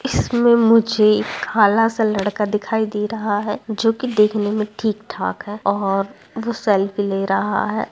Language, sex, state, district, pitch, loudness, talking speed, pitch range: Hindi, female, Bihar, Gaya, 210 Hz, -19 LUFS, 175 wpm, 205-225 Hz